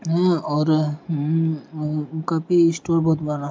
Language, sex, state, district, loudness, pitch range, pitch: Hindi, male, Uttar Pradesh, Deoria, -21 LUFS, 150-165 Hz, 160 Hz